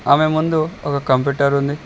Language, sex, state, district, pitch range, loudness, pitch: Telugu, male, Telangana, Mahabubabad, 140-155 Hz, -17 LUFS, 140 Hz